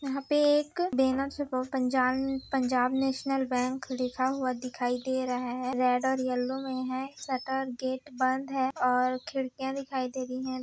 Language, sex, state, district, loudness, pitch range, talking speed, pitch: Hindi, female, Chhattisgarh, Bastar, -30 LUFS, 255-270 Hz, 165 wpm, 260 Hz